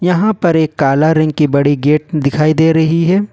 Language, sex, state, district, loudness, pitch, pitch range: Hindi, male, Jharkhand, Ranchi, -12 LUFS, 155 Hz, 150-170 Hz